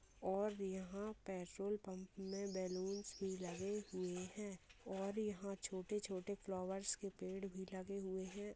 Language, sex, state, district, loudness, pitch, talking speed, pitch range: Hindi, female, Bihar, Begusarai, -46 LUFS, 195 Hz, 140 wpm, 190-200 Hz